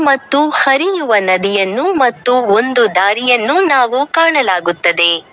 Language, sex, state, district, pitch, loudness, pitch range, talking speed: Kannada, female, Karnataka, Koppal, 245 Hz, -12 LUFS, 195-280 Hz, 90 wpm